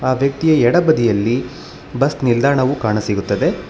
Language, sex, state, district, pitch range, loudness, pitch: Kannada, male, Karnataka, Bangalore, 110-140 Hz, -16 LUFS, 130 Hz